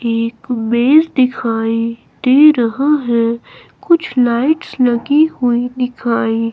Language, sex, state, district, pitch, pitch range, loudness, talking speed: Hindi, female, Himachal Pradesh, Shimla, 245 Hz, 230-285 Hz, -14 LUFS, 100 wpm